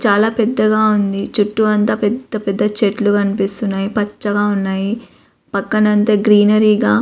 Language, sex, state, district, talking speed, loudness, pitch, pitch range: Telugu, female, Andhra Pradesh, Visakhapatnam, 135 wpm, -15 LUFS, 210 Hz, 200-215 Hz